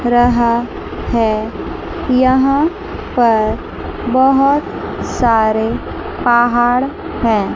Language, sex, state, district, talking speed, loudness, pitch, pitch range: Hindi, male, Chandigarh, Chandigarh, 65 wpm, -15 LUFS, 240 Hz, 230-265 Hz